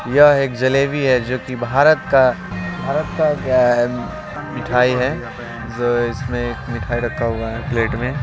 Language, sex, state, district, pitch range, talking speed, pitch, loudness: Hindi, male, Bihar, Vaishali, 120-130 Hz, 170 wpm, 125 Hz, -18 LUFS